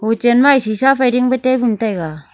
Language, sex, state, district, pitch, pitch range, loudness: Wancho, female, Arunachal Pradesh, Longding, 240 Hz, 220-255 Hz, -14 LUFS